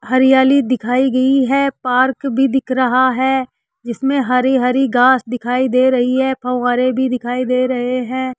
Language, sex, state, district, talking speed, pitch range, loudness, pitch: Hindi, male, Rajasthan, Jaipur, 165 wpm, 250-265 Hz, -15 LUFS, 255 Hz